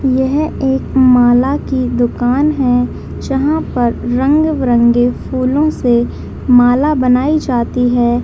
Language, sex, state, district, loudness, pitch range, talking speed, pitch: Hindi, female, Bihar, Madhepura, -13 LUFS, 245-275 Hz, 115 wpm, 255 Hz